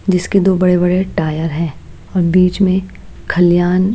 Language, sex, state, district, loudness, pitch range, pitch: Hindi, female, Maharashtra, Washim, -14 LUFS, 175-190 Hz, 180 Hz